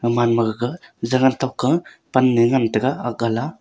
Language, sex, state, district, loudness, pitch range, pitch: Wancho, male, Arunachal Pradesh, Longding, -20 LUFS, 115-130 Hz, 120 Hz